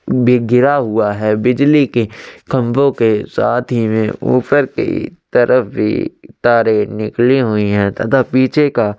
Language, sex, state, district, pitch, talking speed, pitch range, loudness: Hindi, male, Chhattisgarh, Sukma, 120 Hz, 155 wpm, 110-130 Hz, -14 LUFS